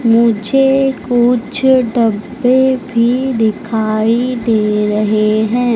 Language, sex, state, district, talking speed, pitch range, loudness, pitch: Hindi, female, Madhya Pradesh, Dhar, 85 wpm, 220-255 Hz, -13 LUFS, 235 Hz